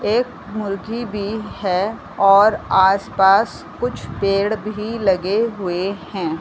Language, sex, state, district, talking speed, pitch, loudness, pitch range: Hindi, female, Uttar Pradesh, Varanasi, 110 wpm, 200 Hz, -19 LUFS, 195-215 Hz